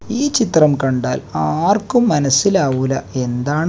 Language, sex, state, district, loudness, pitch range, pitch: Malayalam, male, Kerala, Kasaragod, -16 LUFS, 130-205 Hz, 145 Hz